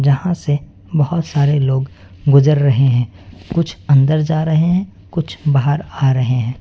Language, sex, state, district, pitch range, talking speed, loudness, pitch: Hindi, male, West Bengal, Alipurduar, 130-155 Hz, 165 wpm, -16 LUFS, 145 Hz